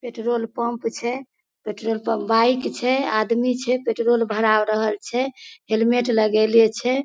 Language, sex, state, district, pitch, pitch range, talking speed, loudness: Maithili, female, Bihar, Madhepura, 235 Hz, 220-250 Hz, 145 wpm, -21 LUFS